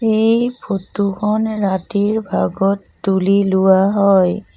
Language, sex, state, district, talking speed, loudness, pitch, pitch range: Assamese, female, Assam, Sonitpur, 105 wpm, -16 LUFS, 200 Hz, 190-215 Hz